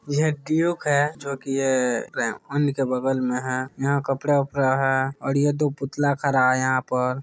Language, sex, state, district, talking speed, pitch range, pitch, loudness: Hindi, male, Bihar, Araria, 200 wpm, 130-145 Hz, 135 Hz, -23 LUFS